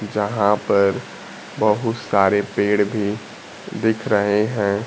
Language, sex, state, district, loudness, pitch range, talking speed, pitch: Hindi, male, Bihar, Kaimur, -19 LUFS, 100-110 Hz, 110 wpm, 105 Hz